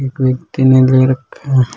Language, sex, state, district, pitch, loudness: Rajasthani, male, Rajasthan, Churu, 130 Hz, -13 LUFS